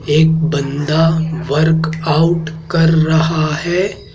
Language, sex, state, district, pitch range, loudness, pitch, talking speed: Hindi, male, Madhya Pradesh, Dhar, 155-165 Hz, -15 LUFS, 160 Hz, 100 wpm